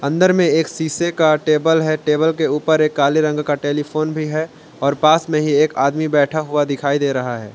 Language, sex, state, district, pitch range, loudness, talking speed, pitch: Hindi, male, Jharkhand, Palamu, 145-155 Hz, -17 LUFS, 230 wpm, 155 Hz